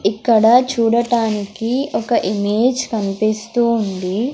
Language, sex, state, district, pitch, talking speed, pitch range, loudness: Telugu, female, Andhra Pradesh, Sri Satya Sai, 225 Hz, 85 wpm, 205-240 Hz, -17 LUFS